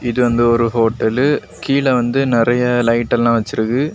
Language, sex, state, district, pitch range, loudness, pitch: Tamil, male, Tamil Nadu, Kanyakumari, 115-130 Hz, -15 LUFS, 120 Hz